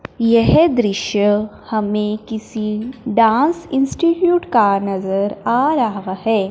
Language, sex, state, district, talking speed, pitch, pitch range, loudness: Hindi, female, Punjab, Fazilka, 100 wpm, 220 Hz, 205-250 Hz, -17 LUFS